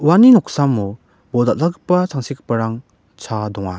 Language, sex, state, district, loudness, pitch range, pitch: Garo, male, Meghalaya, West Garo Hills, -17 LUFS, 105-150 Hz, 120 Hz